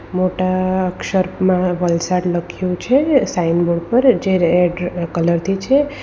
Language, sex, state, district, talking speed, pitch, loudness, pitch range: Gujarati, female, Gujarat, Valsad, 130 wpm, 185 Hz, -17 LUFS, 175-190 Hz